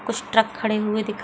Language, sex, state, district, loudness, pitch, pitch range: Hindi, female, Maharashtra, Chandrapur, -22 LUFS, 220 Hz, 215-225 Hz